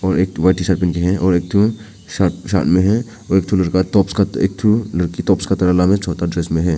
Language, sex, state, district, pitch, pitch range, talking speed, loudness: Hindi, male, Arunachal Pradesh, Papum Pare, 95 Hz, 90-100 Hz, 275 wpm, -16 LUFS